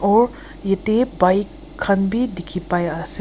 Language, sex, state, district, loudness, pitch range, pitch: Nagamese, female, Nagaland, Kohima, -20 LUFS, 180-225 Hz, 195 Hz